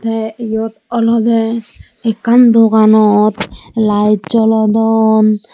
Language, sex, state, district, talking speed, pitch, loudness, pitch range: Chakma, female, Tripura, Dhalai, 75 wpm, 220 Hz, -12 LUFS, 215-230 Hz